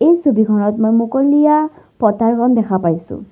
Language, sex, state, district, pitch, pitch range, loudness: Assamese, female, Assam, Sonitpur, 230 Hz, 215-285 Hz, -14 LUFS